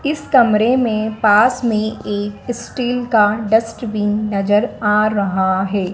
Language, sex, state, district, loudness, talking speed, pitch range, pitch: Hindi, female, Madhya Pradesh, Dhar, -16 LUFS, 130 wpm, 205-240 Hz, 215 Hz